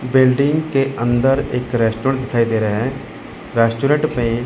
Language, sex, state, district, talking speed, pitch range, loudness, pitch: Hindi, male, Chandigarh, Chandigarh, 160 wpm, 115-135 Hz, -17 LUFS, 125 Hz